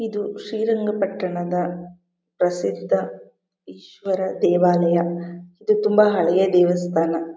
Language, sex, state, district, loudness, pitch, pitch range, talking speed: Kannada, female, Karnataka, Mysore, -21 LUFS, 175 Hz, 170-195 Hz, 75 wpm